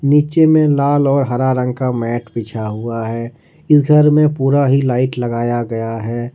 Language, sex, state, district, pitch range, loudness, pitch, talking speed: Hindi, male, Jharkhand, Ranchi, 120-145 Hz, -15 LUFS, 130 Hz, 190 wpm